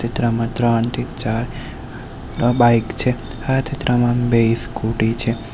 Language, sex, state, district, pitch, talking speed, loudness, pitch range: Gujarati, male, Gujarat, Valsad, 120 Hz, 120 wpm, -19 LUFS, 115-125 Hz